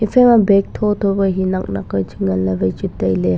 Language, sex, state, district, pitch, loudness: Wancho, male, Arunachal Pradesh, Longding, 185 Hz, -16 LUFS